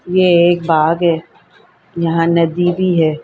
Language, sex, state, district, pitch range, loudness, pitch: Hindi, female, Delhi, New Delhi, 165-175 Hz, -14 LUFS, 170 Hz